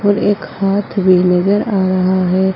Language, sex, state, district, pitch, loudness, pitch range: Hindi, female, Uttar Pradesh, Saharanpur, 190 Hz, -14 LUFS, 185-200 Hz